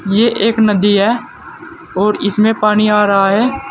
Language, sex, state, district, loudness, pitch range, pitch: Hindi, male, Uttar Pradesh, Saharanpur, -13 LUFS, 205-225 Hz, 210 Hz